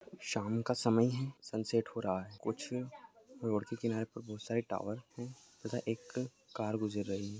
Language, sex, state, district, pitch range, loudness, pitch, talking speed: Hindi, male, Maharashtra, Nagpur, 110-125 Hz, -38 LUFS, 115 Hz, 180 wpm